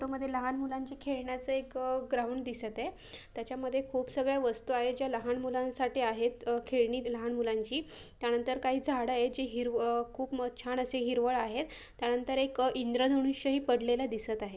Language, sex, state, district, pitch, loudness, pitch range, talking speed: Marathi, female, Maharashtra, Solapur, 255 Hz, -33 LUFS, 240-265 Hz, 175 wpm